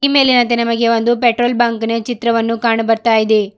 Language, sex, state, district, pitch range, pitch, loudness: Kannada, female, Karnataka, Bidar, 230-240 Hz, 230 Hz, -14 LUFS